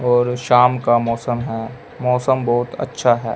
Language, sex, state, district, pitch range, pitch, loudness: Hindi, male, Punjab, Fazilka, 120-125 Hz, 120 Hz, -18 LUFS